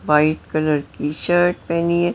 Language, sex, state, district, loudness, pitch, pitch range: Hindi, female, Maharashtra, Mumbai Suburban, -19 LUFS, 155 Hz, 150-175 Hz